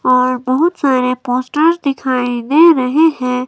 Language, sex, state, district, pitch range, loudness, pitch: Hindi, female, Himachal Pradesh, Shimla, 250-305 Hz, -14 LUFS, 255 Hz